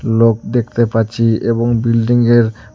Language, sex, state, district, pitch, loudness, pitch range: Bengali, male, West Bengal, Cooch Behar, 115 Hz, -14 LUFS, 115-120 Hz